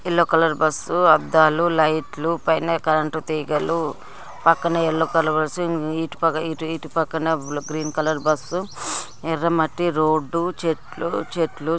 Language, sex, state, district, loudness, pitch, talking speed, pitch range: Telugu, female, Andhra Pradesh, Guntur, -21 LUFS, 160 Hz, 110 wpm, 155-165 Hz